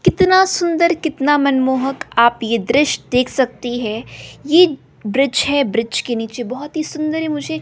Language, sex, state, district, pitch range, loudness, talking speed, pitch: Hindi, female, Bihar, West Champaran, 240-315 Hz, -17 LUFS, 165 wpm, 275 Hz